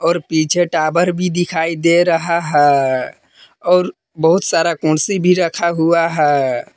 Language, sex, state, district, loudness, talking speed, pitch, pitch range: Hindi, male, Jharkhand, Palamu, -15 LUFS, 140 wpm, 165 Hz, 155-175 Hz